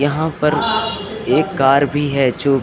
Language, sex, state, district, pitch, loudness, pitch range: Hindi, female, Uttar Pradesh, Lucknow, 145 Hz, -17 LUFS, 135-150 Hz